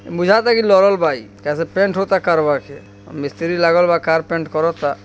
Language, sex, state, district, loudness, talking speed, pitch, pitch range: Bhojpuri, male, Bihar, East Champaran, -16 LUFS, 200 wpm, 165 Hz, 145-190 Hz